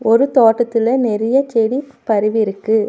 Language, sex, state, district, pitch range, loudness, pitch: Tamil, female, Tamil Nadu, Nilgiris, 220-250 Hz, -15 LUFS, 230 Hz